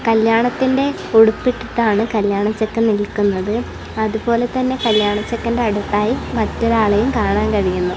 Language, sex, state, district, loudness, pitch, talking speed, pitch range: Malayalam, female, Kerala, Kasaragod, -17 LUFS, 220 Hz, 100 wpm, 210-235 Hz